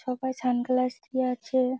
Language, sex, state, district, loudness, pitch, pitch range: Bengali, female, West Bengal, Jalpaiguri, -28 LUFS, 255 Hz, 250-260 Hz